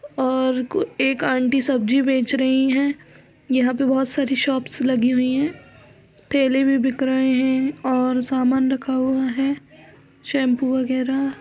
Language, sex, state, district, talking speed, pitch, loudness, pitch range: Hindi, female, Uttar Pradesh, Budaun, 145 wpm, 265 Hz, -20 LUFS, 255-270 Hz